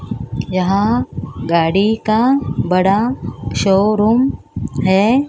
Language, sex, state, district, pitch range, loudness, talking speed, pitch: Hindi, female, Maharashtra, Mumbai Suburban, 190-230 Hz, -16 LUFS, 70 wpm, 210 Hz